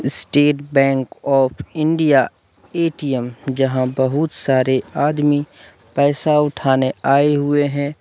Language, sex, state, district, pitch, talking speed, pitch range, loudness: Hindi, male, Jharkhand, Deoghar, 140 Hz, 110 wpm, 130-145 Hz, -17 LUFS